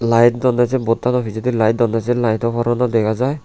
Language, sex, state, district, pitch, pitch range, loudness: Chakma, male, Tripura, Unakoti, 120 Hz, 115-125 Hz, -17 LUFS